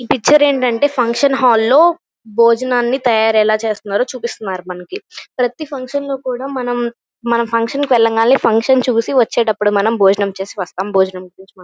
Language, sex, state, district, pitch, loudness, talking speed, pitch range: Telugu, female, Andhra Pradesh, Guntur, 235 Hz, -15 LUFS, 145 wpm, 215-260 Hz